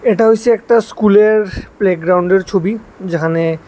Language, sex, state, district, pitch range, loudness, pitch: Bengali, male, Tripura, West Tripura, 180-225 Hz, -13 LUFS, 205 Hz